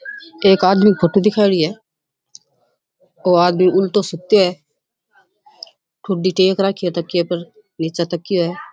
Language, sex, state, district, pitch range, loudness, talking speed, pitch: Rajasthani, female, Rajasthan, Churu, 170-200 Hz, -16 LUFS, 130 wpm, 185 Hz